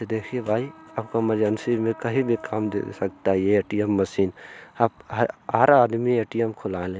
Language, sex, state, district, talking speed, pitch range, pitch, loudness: Hindi, male, Bihar, Bhagalpur, 180 wpm, 100-115 Hz, 110 Hz, -24 LUFS